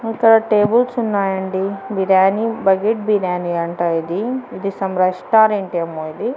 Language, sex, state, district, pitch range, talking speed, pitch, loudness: Telugu, female, Andhra Pradesh, Annamaya, 185-225 Hz, 125 wpm, 195 Hz, -17 LUFS